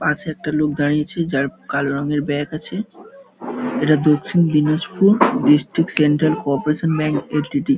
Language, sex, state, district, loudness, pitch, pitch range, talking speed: Bengali, male, West Bengal, Dakshin Dinajpur, -18 LUFS, 150 Hz, 145-165 Hz, 130 wpm